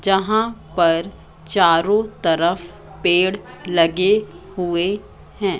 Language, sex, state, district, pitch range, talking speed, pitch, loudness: Hindi, female, Madhya Pradesh, Katni, 170-205 Hz, 85 wpm, 185 Hz, -19 LUFS